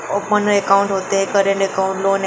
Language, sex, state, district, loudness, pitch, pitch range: Hindi, female, Goa, North and South Goa, -17 LUFS, 195 Hz, 195-200 Hz